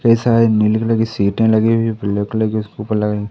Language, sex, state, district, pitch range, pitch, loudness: Hindi, male, Madhya Pradesh, Katni, 105-115 Hz, 110 Hz, -16 LUFS